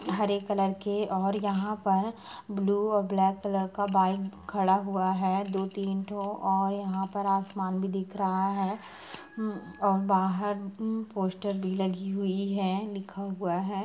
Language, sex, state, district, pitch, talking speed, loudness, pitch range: Hindi, female, Bihar, Gaya, 195 Hz, 165 wpm, -30 LUFS, 190-200 Hz